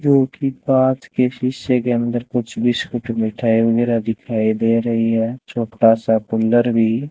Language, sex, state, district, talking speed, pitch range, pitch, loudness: Hindi, male, Rajasthan, Bikaner, 160 wpm, 115-125 Hz, 120 Hz, -18 LUFS